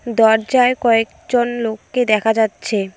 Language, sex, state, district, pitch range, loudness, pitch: Bengali, female, West Bengal, Cooch Behar, 220-245 Hz, -16 LUFS, 225 Hz